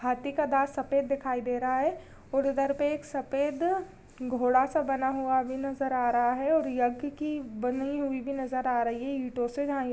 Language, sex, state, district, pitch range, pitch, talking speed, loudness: Hindi, female, Chhattisgarh, Rajnandgaon, 255-280 Hz, 270 Hz, 205 wpm, -29 LUFS